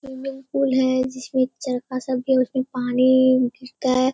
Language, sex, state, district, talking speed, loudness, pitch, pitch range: Hindi, female, Bihar, Kishanganj, 160 wpm, -21 LUFS, 255 Hz, 255-265 Hz